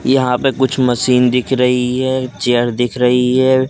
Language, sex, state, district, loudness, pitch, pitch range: Hindi, male, Madhya Pradesh, Katni, -14 LUFS, 125 Hz, 125-130 Hz